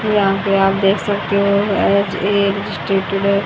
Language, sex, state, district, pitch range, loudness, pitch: Hindi, female, Haryana, Jhajjar, 195-200 Hz, -16 LUFS, 200 Hz